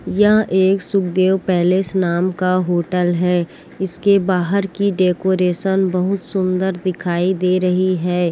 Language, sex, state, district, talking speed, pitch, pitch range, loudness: Chhattisgarhi, female, Chhattisgarh, Korba, 135 wpm, 185 Hz, 180-190 Hz, -17 LUFS